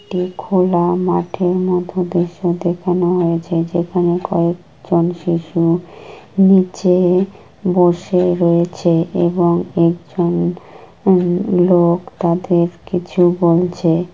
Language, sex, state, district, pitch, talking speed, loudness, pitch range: Bengali, female, West Bengal, Kolkata, 175 Hz, 85 wpm, -16 LUFS, 170-180 Hz